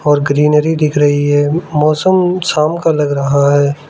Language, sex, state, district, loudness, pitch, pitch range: Hindi, male, Arunachal Pradesh, Lower Dibang Valley, -12 LUFS, 150 Hz, 145-160 Hz